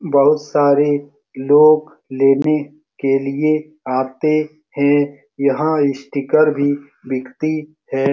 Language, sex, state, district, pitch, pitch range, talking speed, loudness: Hindi, male, Bihar, Saran, 145 Hz, 140-155 Hz, 95 wpm, -17 LUFS